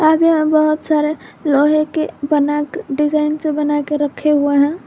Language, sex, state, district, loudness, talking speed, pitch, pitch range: Hindi, female, Jharkhand, Garhwa, -16 LUFS, 170 wpm, 300 Hz, 295-310 Hz